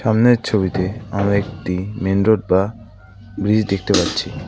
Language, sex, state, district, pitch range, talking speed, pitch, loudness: Bengali, male, West Bengal, Cooch Behar, 95-110 Hz, 135 wpm, 100 Hz, -18 LUFS